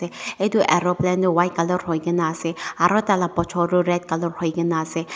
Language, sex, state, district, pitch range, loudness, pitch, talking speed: Nagamese, female, Nagaland, Dimapur, 165-180 Hz, -21 LUFS, 175 Hz, 185 wpm